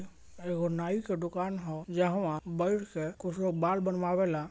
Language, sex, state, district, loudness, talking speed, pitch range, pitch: Bhojpuri, male, Bihar, Gopalganj, -32 LUFS, 175 wpm, 170-190 Hz, 180 Hz